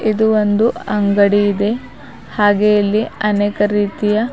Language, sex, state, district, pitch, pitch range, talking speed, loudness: Kannada, female, Karnataka, Bidar, 210 Hz, 205-215 Hz, 125 wpm, -15 LUFS